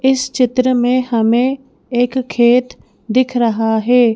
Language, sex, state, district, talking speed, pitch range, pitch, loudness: Hindi, female, Madhya Pradesh, Bhopal, 130 wpm, 235-255 Hz, 245 Hz, -15 LUFS